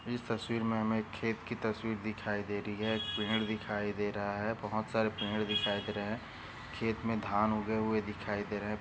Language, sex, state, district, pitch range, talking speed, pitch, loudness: Hindi, male, Maharashtra, Aurangabad, 105-110 Hz, 220 wpm, 110 Hz, -35 LUFS